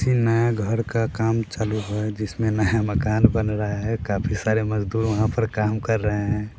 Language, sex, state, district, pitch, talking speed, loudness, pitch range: Hindi, male, Bihar, Sitamarhi, 110 Hz, 200 wpm, -23 LUFS, 105-115 Hz